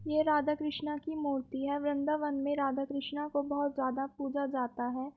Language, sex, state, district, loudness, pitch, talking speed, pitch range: Hindi, female, Uttar Pradesh, Muzaffarnagar, -34 LUFS, 285 Hz, 185 wpm, 275-295 Hz